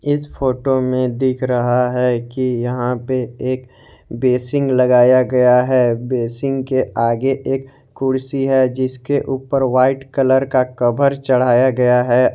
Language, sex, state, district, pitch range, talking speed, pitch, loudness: Hindi, male, Jharkhand, Garhwa, 125-135 Hz, 145 wpm, 130 Hz, -16 LUFS